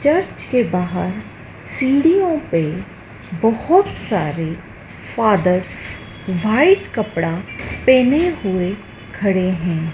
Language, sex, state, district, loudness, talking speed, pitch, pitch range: Hindi, female, Madhya Pradesh, Dhar, -18 LUFS, 85 wpm, 200 Hz, 180-265 Hz